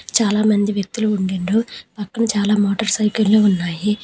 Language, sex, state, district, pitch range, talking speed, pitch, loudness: Telugu, female, Telangana, Hyderabad, 200-215 Hz, 120 wpm, 210 Hz, -18 LUFS